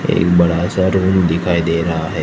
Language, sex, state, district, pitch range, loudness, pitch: Hindi, male, Gujarat, Gandhinagar, 85-90 Hz, -15 LUFS, 85 Hz